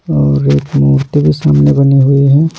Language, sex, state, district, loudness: Hindi, male, Punjab, Pathankot, -10 LUFS